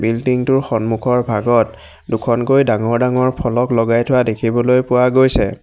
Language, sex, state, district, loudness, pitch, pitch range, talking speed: Assamese, male, Assam, Hailakandi, -15 LUFS, 120 Hz, 115-125 Hz, 140 wpm